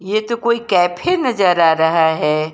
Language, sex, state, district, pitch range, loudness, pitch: Hindi, female, Rajasthan, Jaipur, 160-235 Hz, -15 LUFS, 180 Hz